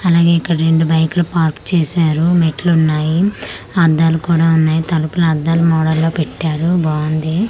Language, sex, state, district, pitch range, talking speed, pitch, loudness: Telugu, female, Andhra Pradesh, Manyam, 160-170 Hz, 145 wpm, 165 Hz, -14 LUFS